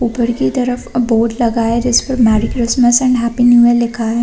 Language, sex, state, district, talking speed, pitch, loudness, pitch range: Hindi, female, Chhattisgarh, Rajnandgaon, 210 wpm, 240 Hz, -13 LUFS, 230-245 Hz